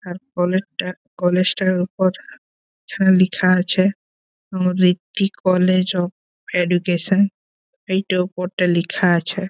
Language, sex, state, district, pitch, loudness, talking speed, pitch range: Bengali, male, West Bengal, Malda, 185 Hz, -19 LUFS, 115 wpm, 180-190 Hz